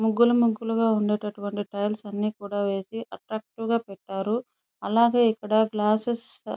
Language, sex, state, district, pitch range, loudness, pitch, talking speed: Telugu, female, Andhra Pradesh, Chittoor, 205-230 Hz, -25 LUFS, 220 Hz, 135 wpm